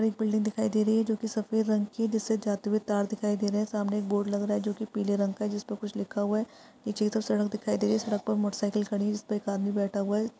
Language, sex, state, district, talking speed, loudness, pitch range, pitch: Hindi, female, Uttar Pradesh, Varanasi, 330 wpm, -29 LUFS, 205-215 Hz, 210 Hz